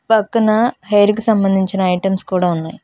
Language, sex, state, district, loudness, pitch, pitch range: Telugu, female, Telangana, Hyderabad, -15 LUFS, 195 Hz, 190-220 Hz